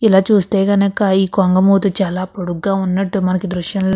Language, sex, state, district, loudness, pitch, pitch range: Telugu, female, Andhra Pradesh, Krishna, -15 LUFS, 195 Hz, 185-200 Hz